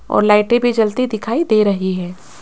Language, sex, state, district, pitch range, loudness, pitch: Hindi, female, Rajasthan, Jaipur, 200-235 Hz, -16 LUFS, 215 Hz